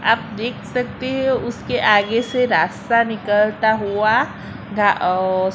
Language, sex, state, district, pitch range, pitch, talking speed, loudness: Hindi, female, Gujarat, Gandhinagar, 205-235 Hz, 220 Hz, 130 wpm, -18 LUFS